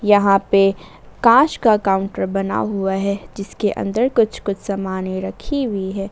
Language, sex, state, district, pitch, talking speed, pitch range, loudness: Hindi, female, Jharkhand, Ranchi, 200 Hz, 155 wpm, 195-210 Hz, -18 LUFS